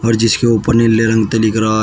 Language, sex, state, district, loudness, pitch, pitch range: Hindi, male, Uttar Pradesh, Shamli, -13 LUFS, 115 Hz, 110-115 Hz